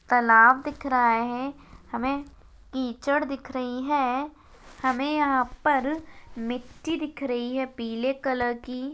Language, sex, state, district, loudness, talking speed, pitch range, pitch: Hindi, female, Maharashtra, Chandrapur, -25 LUFS, 125 wpm, 245-280 Hz, 260 Hz